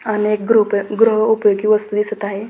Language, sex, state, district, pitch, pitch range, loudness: Marathi, female, Maharashtra, Pune, 210 Hz, 205-220 Hz, -16 LUFS